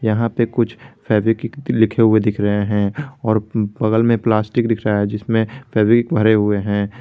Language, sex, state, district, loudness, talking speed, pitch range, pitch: Hindi, male, Jharkhand, Garhwa, -17 LUFS, 180 wpm, 105-115 Hz, 110 Hz